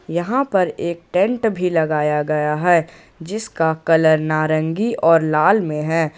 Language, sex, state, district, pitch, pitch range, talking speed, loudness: Hindi, male, Jharkhand, Ranchi, 165 Hz, 155-185 Hz, 145 wpm, -18 LUFS